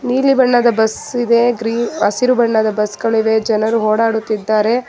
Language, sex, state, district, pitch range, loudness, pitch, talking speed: Kannada, female, Karnataka, Bangalore, 220-240 Hz, -15 LUFS, 225 Hz, 135 wpm